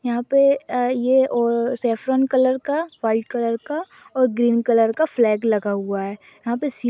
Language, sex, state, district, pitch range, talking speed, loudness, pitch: Hindi, female, Chhattisgarh, Raigarh, 230-265 Hz, 175 wpm, -20 LUFS, 245 Hz